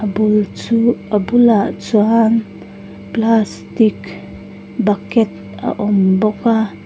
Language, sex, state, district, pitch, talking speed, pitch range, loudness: Mizo, female, Mizoram, Aizawl, 215 Hz, 95 wpm, 200-230 Hz, -15 LUFS